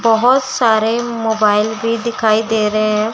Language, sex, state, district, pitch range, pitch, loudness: Hindi, female, Chandigarh, Chandigarh, 215-230 Hz, 225 Hz, -15 LUFS